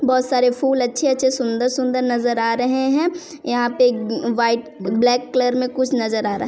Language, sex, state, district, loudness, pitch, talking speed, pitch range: Hindi, female, Chhattisgarh, Sarguja, -19 LUFS, 250 Hz, 205 wpm, 240-260 Hz